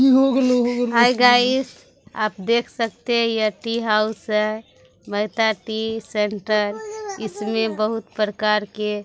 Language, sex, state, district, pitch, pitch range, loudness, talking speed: Hindi, female, Bihar, Katihar, 220 Hz, 210-235 Hz, -20 LUFS, 105 wpm